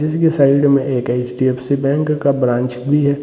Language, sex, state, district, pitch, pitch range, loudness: Hindi, male, Jharkhand, Sahebganj, 140 Hz, 125-145 Hz, -16 LUFS